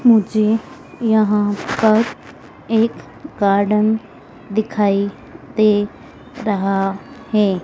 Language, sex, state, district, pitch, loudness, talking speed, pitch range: Hindi, female, Madhya Pradesh, Dhar, 215 Hz, -18 LUFS, 70 wpm, 200-220 Hz